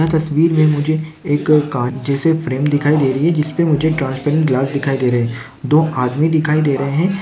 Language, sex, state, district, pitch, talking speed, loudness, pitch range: Hindi, male, Rajasthan, Churu, 150 Hz, 215 wpm, -16 LUFS, 135-155 Hz